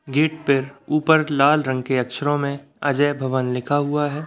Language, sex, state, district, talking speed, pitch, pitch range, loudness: Hindi, male, Bihar, Begusarai, 185 wpm, 145 Hz, 135-150 Hz, -20 LUFS